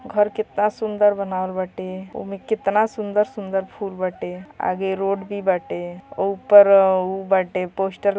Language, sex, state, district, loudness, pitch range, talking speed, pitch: Bhojpuri, female, Uttar Pradesh, Gorakhpur, -21 LUFS, 185-205 Hz, 140 wpm, 195 Hz